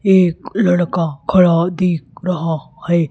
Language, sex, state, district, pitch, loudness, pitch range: Hindi, female, Maharashtra, Gondia, 175 Hz, -16 LUFS, 165-185 Hz